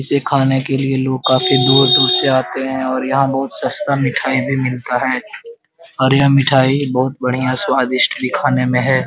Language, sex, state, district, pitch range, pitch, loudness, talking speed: Hindi, male, Bihar, Jamui, 130-135 Hz, 130 Hz, -15 LUFS, 185 wpm